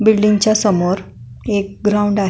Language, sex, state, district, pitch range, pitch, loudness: Marathi, female, Maharashtra, Pune, 190-210 Hz, 205 Hz, -16 LUFS